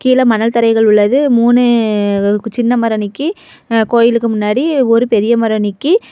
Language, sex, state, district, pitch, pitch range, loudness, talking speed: Tamil, female, Tamil Nadu, Kanyakumari, 230 Hz, 220-245 Hz, -12 LUFS, 115 wpm